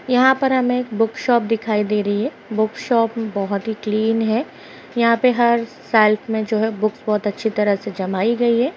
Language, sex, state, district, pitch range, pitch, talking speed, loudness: Hindi, female, Uttar Pradesh, Ghazipur, 210-235 Hz, 225 Hz, 210 wpm, -19 LUFS